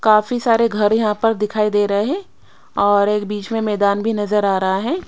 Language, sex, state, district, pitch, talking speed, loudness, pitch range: Hindi, female, Odisha, Sambalpur, 210 Hz, 225 wpm, -17 LUFS, 205-225 Hz